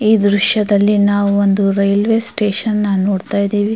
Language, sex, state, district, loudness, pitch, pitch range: Kannada, female, Karnataka, Mysore, -14 LUFS, 205 Hz, 200-210 Hz